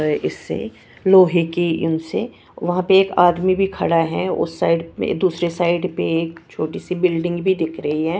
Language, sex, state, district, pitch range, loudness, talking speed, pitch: Hindi, female, Punjab, Kapurthala, 165-185 Hz, -19 LUFS, 190 wpm, 175 Hz